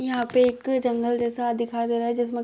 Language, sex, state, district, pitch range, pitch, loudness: Hindi, female, Bihar, Muzaffarpur, 235-245 Hz, 240 Hz, -24 LUFS